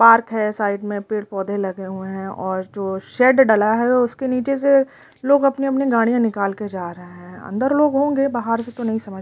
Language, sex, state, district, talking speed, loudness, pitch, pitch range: Hindi, female, Delhi, New Delhi, 245 wpm, -19 LUFS, 225 Hz, 195-265 Hz